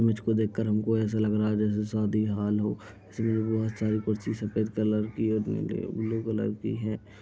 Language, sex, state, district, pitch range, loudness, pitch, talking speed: Hindi, male, Chhattisgarh, Raigarh, 105-110 Hz, -29 LUFS, 110 Hz, 215 wpm